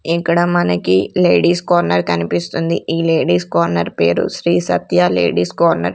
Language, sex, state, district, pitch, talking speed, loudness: Telugu, female, Andhra Pradesh, Sri Satya Sai, 90 Hz, 140 wpm, -15 LUFS